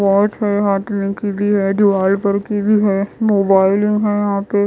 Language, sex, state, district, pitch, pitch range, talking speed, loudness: Hindi, female, Bihar, West Champaran, 205 Hz, 195-205 Hz, 195 wpm, -16 LUFS